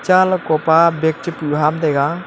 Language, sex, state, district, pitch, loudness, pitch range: Wancho, male, Arunachal Pradesh, Longding, 160 Hz, -16 LUFS, 150-170 Hz